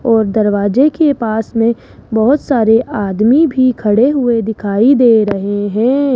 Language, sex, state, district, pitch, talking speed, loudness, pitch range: Hindi, female, Rajasthan, Jaipur, 225 Hz, 145 wpm, -12 LUFS, 215-260 Hz